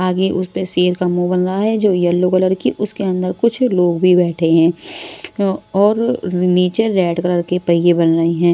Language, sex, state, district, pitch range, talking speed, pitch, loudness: Hindi, female, Maharashtra, Mumbai Suburban, 175-190 Hz, 195 wpm, 180 Hz, -15 LUFS